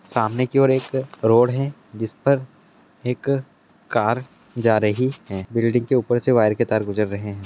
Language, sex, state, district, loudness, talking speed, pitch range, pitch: Hindi, male, Bihar, Araria, -21 LUFS, 195 wpm, 110-130 Hz, 120 Hz